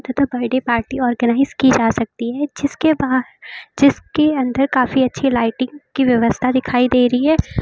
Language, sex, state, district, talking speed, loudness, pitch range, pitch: Hindi, female, Uttar Pradesh, Lucknow, 155 wpm, -17 LUFS, 245-275 Hz, 255 Hz